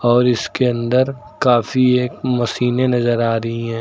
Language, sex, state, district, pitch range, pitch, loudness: Hindi, male, Uttar Pradesh, Lucknow, 120-125 Hz, 125 Hz, -17 LUFS